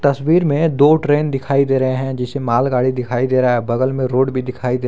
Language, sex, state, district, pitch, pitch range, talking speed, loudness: Hindi, male, Jharkhand, Garhwa, 130 Hz, 125-140 Hz, 270 wpm, -16 LUFS